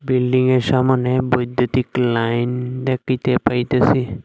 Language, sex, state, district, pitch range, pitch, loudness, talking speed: Bengali, male, Assam, Hailakandi, 125-130 Hz, 125 Hz, -18 LUFS, 85 wpm